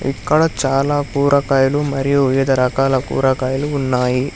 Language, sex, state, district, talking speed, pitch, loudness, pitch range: Telugu, male, Telangana, Hyderabad, 110 wpm, 135 Hz, -16 LUFS, 135-140 Hz